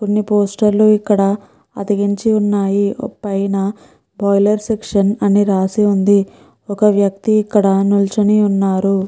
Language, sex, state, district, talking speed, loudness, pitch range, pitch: Telugu, female, Andhra Pradesh, Krishna, 100 wpm, -15 LUFS, 195-210 Hz, 200 Hz